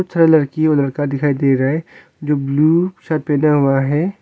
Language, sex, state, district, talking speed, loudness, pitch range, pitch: Hindi, male, Arunachal Pradesh, Longding, 185 wpm, -16 LUFS, 140-160 Hz, 150 Hz